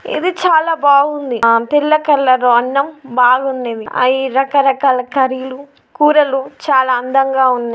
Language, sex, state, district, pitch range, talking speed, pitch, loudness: Telugu, female, Andhra Pradesh, Guntur, 255-285 Hz, 115 wpm, 270 Hz, -13 LUFS